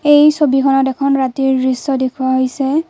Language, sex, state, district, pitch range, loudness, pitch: Assamese, female, Assam, Kamrup Metropolitan, 260-285 Hz, -14 LUFS, 270 Hz